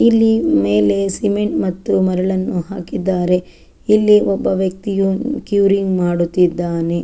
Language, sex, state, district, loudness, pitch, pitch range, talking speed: Kannada, female, Karnataka, Chamarajanagar, -16 LUFS, 190 Hz, 175-205 Hz, 95 wpm